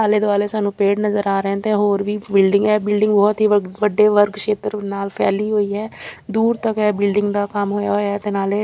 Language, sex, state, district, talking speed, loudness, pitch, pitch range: Punjabi, female, Chandigarh, Chandigarh, 235 wpm, -18 LUFS, 205 Hz, 200-210 Hz